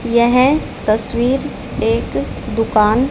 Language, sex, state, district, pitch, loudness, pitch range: Hindi, female, Haryana, Charkhi Dadri, 235 Hz, -16 LUFS, 220-260 Hz